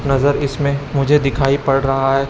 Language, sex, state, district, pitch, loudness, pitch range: Hindi, male, Chhattisgarh, Raipur, 140 Hz, -16 LUFS, 135-140 Hz